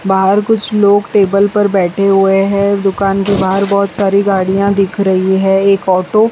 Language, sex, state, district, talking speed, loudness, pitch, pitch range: Hindi, female, Bihar, West Champaran, 190 wpm, -12 LUFS, 195 Hz, 195-200 Hz